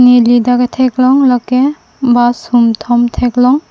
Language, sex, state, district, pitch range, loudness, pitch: Karbi, female, Assam, Karbi Anglong, 240-255 Hz, -11 LUFS, 245 Hz